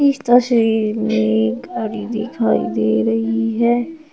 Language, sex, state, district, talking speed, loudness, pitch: Hindi, female, Uttar Pradesh, Shamli, 130 wpm, -17 LUFS, 225 Hz